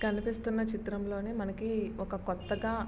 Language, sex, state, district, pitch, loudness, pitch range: Telugu, male, Andhra Pradesh, Srikakulam, 210 Hz, -35 LUFS, 200-225 Hz